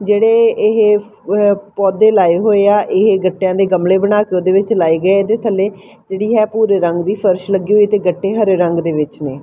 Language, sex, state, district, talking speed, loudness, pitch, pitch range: Punjabi, female, Punjab, Fazilka, 195 wpm, -13 LUFS, 200 Hz, 185-210 Hz